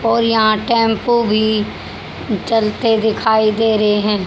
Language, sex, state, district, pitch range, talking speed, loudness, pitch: Hindi, female, Haryana, Jhajjar, 215-225 Hz, 125 wpm, -15 LUFS, 220 Hz